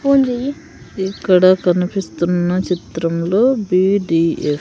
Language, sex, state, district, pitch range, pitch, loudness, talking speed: Telugu, female, Andhra Pradesh, Sri Satya Sai, 175-200 Hz, 185 Hz, -16 LUFS, 65 wpm